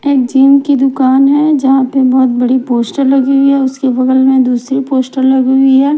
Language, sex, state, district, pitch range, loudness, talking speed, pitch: Hindi, female, Punjab, Kapurthala, 260-275 Hz, -10 LUFS, 210 wpm, 265 Hz